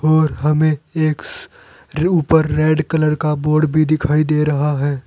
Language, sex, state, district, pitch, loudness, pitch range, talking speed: Hindi, male, Uttar Pradesh, Saharanpur, 155 Hz, -16 LUFS, 150-160 Hz, 155 wpm